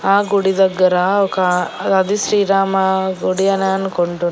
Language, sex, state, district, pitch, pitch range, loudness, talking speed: Telugu, female, Andhra Pradesh, Annamaya, 190 Hz, 185-195 Hz, -16 LUFS, 125 wpm